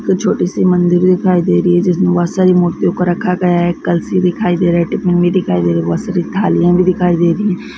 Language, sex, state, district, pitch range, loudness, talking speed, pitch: Hindi, female, Chhattisgarh, Korba, 175-185 Hz, -13 LUFS, 260 wpm, 180 Hz